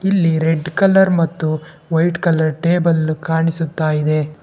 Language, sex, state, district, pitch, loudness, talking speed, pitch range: Kannada, male, Karnataka, Bangalore, 160 Hz, -16 LUFS, 120 wpm, 155-170 Hz